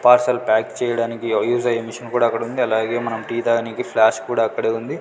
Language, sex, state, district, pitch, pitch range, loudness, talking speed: Telugu, male, Andhra Pradesh, Sri Satya Sai, 115 Hz, 115-120 Hz, -20 LUFS, 205 wpm